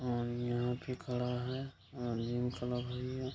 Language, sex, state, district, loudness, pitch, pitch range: Hindi, male, Bihar, Kishanganj, -38 LUFS, 125 Hz, 120-125 Hz